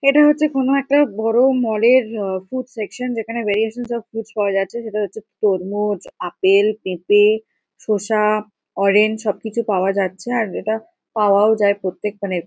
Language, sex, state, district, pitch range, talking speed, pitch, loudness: Bengali, female, West Bengal, Kolkata, 200-235 Hz, 155 wpm, 215 Hz, -18 LUFS